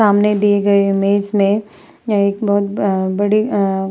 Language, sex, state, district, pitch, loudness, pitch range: Hindi, female, Uttar Pradesh, Muzaffarnagar, 200 Hz, -15 LUFS, 200-210 Hz